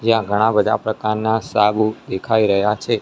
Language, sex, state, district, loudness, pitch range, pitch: Gujarati, male, Gujarat, Gandhinagar, -18 LUFS, 105-110 Hz, 110 Hz